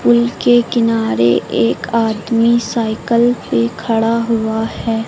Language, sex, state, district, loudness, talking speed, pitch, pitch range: Hindi, female, Uttar Pradesh, Lucknow, -15 LUFS, 120 wpm, 230 Hz, 220-235 Hz